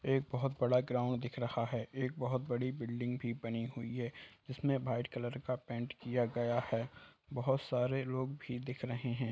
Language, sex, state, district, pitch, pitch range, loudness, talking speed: Hindi, male, Bihar, Lakhisarai, 125 Hz, 120-130 Hz, -38 LUFS, 195 wpm